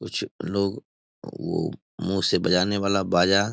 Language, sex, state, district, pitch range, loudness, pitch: Hindi, male, Bihar, East Champaran, 95-100 Hz, -24 LUFS, 100 Hz